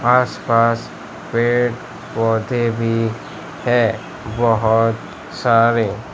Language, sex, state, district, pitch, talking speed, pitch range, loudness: Hindi, male, Gujarat, Gandhinagar, 115 Hz, 70 wpm, 115-120 Hz, -18 LUFS